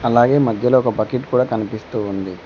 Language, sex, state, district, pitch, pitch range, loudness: Telugu, male, Telangana, Mahabubabad, 120 Hz, 110-125 Hz, -18 LUFS